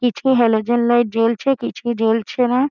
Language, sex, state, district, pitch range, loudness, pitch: Bengali, female, West Bengal, Dakshin Dinajpur, 225-250 Hz, -17 LUFS, 240 Hz